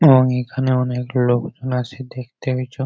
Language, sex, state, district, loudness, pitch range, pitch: Bengali, male, West Bengal, Jhargram, -20 LUFS, 125-130 Hz, 125 Hz